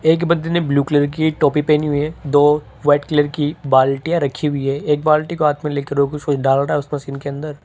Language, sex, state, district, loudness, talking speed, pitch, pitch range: Hindi, male, Rajasthan, Jaipur, -17 LUFS, 265 wpm, 145 Hz, 140-155 Hz